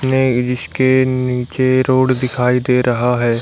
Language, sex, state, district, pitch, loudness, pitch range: Hindi, male, Haryana, Rohtak, 125 Hz, -15 LUFS, 125-130 Hz